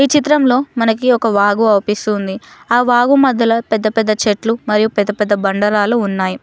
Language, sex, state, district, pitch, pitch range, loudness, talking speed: Telugu, female, Telangana, Mahabubabad, 220 Hz, 205-240 Hz, -14 LUFS, 175 wpm